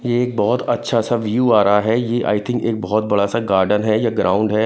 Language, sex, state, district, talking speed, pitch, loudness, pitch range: Hindi, male, Punjab, Kapurthala, 270 wpm, 110 Hz, -17 LUFS, 105-120 Hz